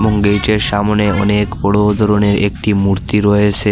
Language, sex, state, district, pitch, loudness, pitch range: Bengali, male, Assam, Hailakandi, 105 Hz, -13 LUFS, 100-105 Hz